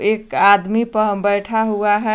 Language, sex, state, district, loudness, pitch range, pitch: Hindi, female, Jharkhand, Garhwa, -16 LUFS, 205-215 Hz, 215 Hz